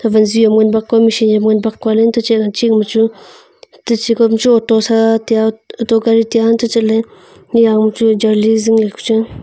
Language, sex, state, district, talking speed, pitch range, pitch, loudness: Wancho, female, Arunachal Pradesh, Longding, 190 wpm, 220-230 Hz, 225 Hz, -12 LUFS